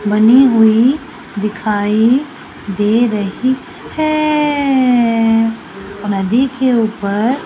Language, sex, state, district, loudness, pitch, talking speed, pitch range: Hindi, female, Rajasthan, Jaipur, -13 LUFS, 230 Hz, 80 wpm, 210-260 Hz